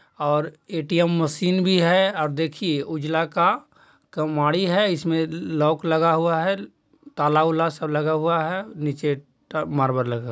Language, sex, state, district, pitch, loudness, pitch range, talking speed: Hindi, male, Bihar, Jahanabad, 160 Hz, -22 LUFS, 150-170 Hz, 165 wpm